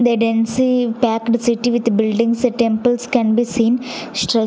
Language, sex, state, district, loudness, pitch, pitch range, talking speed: English, female, Punjab, Fazilka, -17 LUFS, 235 Hz, 225-245 Hz, 145 wpm